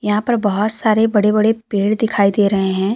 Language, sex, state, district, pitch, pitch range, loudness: Hindi, female, Jharkhand, Deoghar, 210 Hz, 200-220 Hz, -15 LUFS